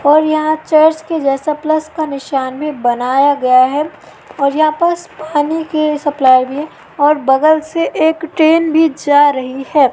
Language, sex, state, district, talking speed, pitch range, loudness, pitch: Hindi, female, Madhya Pradesh, Katni, 170 wpm, 275-315 Hz, -13 LUFS, 300 Hz